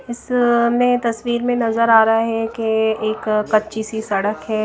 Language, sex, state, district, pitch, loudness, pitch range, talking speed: Hindi, female, Odisha, Nuapada, 225 Hz, -18 LUFS, 220-235 Hz, 165 wpm